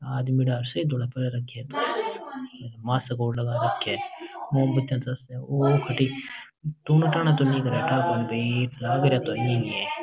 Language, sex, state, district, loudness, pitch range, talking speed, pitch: Marwari, male, Rajasthan, Nagaur, -25 LUFS, 125-150 Hz, 80 wpm, 130 Hz